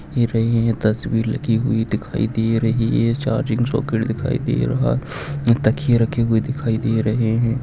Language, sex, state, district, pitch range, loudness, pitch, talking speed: Hindi, male, Maharashtra, Nagpur, 115-120 Hz, -20 LUFS, 115 Hz, 165 wpm